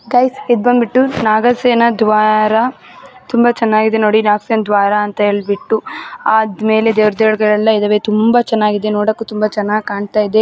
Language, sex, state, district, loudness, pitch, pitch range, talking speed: Kannada, female, Karnataka, Gulbarga, -13 LUFS, 215 Hz, 210-230 Hz, 125 wpm